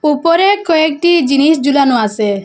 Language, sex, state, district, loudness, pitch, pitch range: Bengali, female, Assam, Hailakandi, -11 LUFS, 300 Hz, 275-335 Hz